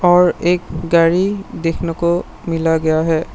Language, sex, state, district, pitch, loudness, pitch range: Hindi, male, Assam, Sonitpur, 170 Hz, -16 LUFS, 165-175 Hz